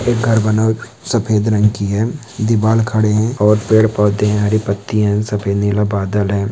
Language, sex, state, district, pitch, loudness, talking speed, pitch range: Hindi, male, Uttarakhand, Uttarkashi, 105 Hz, -15 LUFS, 200 wpm, 105-110 Hz